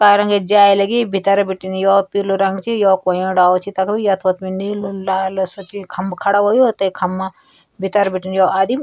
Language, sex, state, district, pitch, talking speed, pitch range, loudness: Garhwali, male, Uttarakhand, Tehri Garhwal, 195 Hz, 195 wpm, 190-200 Hz, -16 LUFS